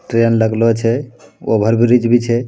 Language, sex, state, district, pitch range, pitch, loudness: Angika, male, Bihar, Bhagalpur, 115-120 Hz, 115 Hz, -14 LUFS